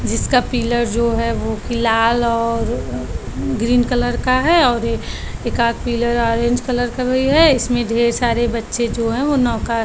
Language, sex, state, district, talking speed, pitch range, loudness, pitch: Hindi, female, Maharashtra, Chandrapur, 190 wpm, 230-245 Hz, -17 LUFS, 235 Hz